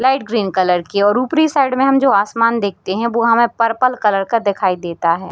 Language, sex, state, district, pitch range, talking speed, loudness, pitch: Hindi, female, Bihar, Darbhanga, 195-255 Hz, 250 wpm, -15 LUFS, 230 Hz